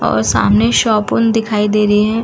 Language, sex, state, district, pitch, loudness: Hindi, female, Uttar Pradesh, Muzaffarnagar, 210 Hz, -13 LUFS